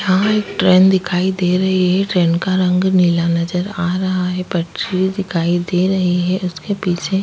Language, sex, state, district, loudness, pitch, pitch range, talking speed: Hindi, female, Chhattisgarh, Kabirdham, -16 LUFS, 185 Hz, 180-190 Hz, 190 wpm